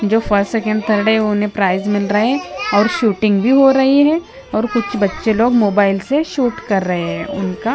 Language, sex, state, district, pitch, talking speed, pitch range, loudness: Hindi, female, Bihar, West Champaran, 215 Hz, 200 wpm, 205-245 Hz, -15 LUFS